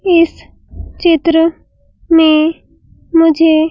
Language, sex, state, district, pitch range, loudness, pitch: Hindi, female, Madhya Pradesh, Bhopal, 320-335 Hz, -11 LUFS, 330 Hz